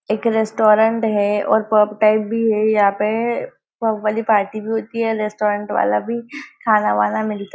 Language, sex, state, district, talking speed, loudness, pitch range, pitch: Hindi, female, Maharashtra, Nagpur, 185 wpm, -18 LUFS, 210-225 Hz, 215 Hz